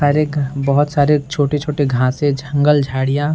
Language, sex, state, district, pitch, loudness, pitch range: Hindi, male, Bihar, Saran, 145 Hz, -16 LUFS, 140-150 Hz